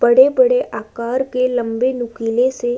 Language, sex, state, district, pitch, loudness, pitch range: Hindi, female, Uttar Pradesh, Budaun, 255 Hz, -17 LUFS, 240-270 Hz